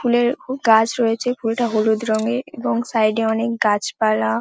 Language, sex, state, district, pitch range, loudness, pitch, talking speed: Bengali, female, West Bengal, Paschim Medinipur, 220-240 Hz, -19 LUFS, 225 Hz, 150 wpm